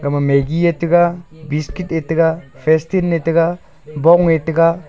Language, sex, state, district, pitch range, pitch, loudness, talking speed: Wancho, male, Arunachal Pradesh, Longding, 155-170 Hz, 165 Hz, -16 LUFS, 170 wpm